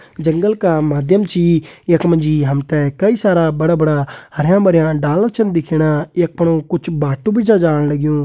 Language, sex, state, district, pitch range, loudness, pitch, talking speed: Kumaoni, male, Uttarakhand, Uttarkashi, 150-180 Hz, -15 LUFS, 165 Hz, 175 wpm